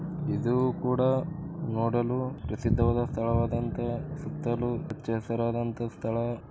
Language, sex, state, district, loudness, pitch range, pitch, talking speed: Kannada, male, Karnataka, Bijapur, -29 LUFS, 115-140 Hz, 120 Hz, 85 wpm